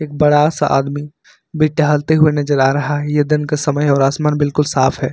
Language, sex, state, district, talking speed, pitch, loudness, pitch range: Hindi, male, Uttar Pradesh, Lucknow, 235 wpm, 150 Hz, -15 LUFS, 145-150 Hz